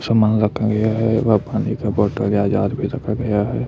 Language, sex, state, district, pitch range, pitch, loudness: Hindi, male, Chhattisgarh, Raipur, 105-115 Hz, 110 Hz, -19 LUFS